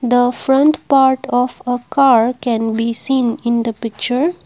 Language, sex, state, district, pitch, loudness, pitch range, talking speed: English, female, Assam, Kamrup Metropolitan, 245 Hz, -15 LUFS, 230-265 Hz, 160 wpm